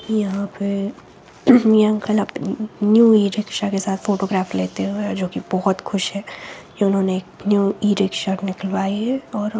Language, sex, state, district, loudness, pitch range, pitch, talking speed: Hindi, female, Jharkhand, Sahebganj, -19 LUFS, 195-210 Hz, 200 Hz, 170 wpm